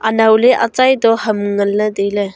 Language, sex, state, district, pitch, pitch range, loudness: Wancho, female, Arunachal Pradesh, Longding, 220 Hz, 205-230 Hz, -13 LUFS